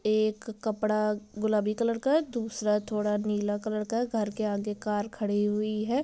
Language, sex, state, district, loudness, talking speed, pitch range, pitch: Hindi, female, Bihar, Gopalganj, -29 LUFS, 190 wpm, 210-225 Hz, 215 Hz